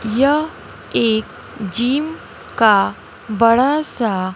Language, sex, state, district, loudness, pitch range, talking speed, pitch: Hindi, female, Bihar, West Champaran, -17 LUFS, 210-270 Hz, 85 wpm, 230 Hz